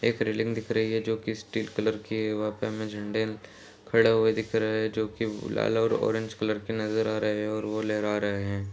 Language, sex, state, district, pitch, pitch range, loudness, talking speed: Hindi, male, Bihar, Jahanabad, 110 Hz, 105-110 Hz, -28 LUFS, 245 wpm